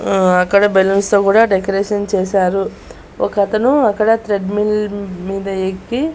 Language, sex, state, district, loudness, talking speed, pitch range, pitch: Telugu, female, Andhra Pradesh, Annamaya, -15 LUFS, 135 wpm, 195-210 Hz, 200 Hz